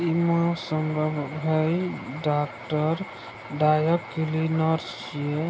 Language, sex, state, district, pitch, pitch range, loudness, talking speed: Maithili, male, Bihar, Begusarai, 155 Hz, 150-165 Hz, -26 LUFS, 75 wpm